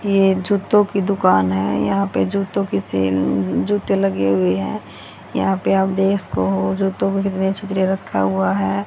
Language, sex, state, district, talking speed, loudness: Hindi, female, Haryana, Rohtak, 175 wpm, -19 LUFS